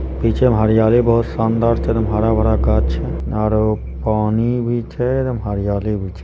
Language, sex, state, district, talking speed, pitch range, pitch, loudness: Angika, male, Bihar, Begusarai, 135 wpm, 105-115 Hz, 110 Hz, -17 LUFS